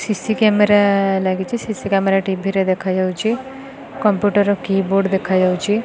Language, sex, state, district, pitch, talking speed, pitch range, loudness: Odia, female, Odisha, Khordha, 195 Hz, 125 wpm, 190-210 Hz, -17 LUFS